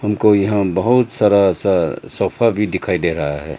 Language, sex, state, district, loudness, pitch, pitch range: Hindi, male, Arunachal Pradesh, Lower Dibang Valley, -16 LUFS, 100 Hz, 90-105 Hz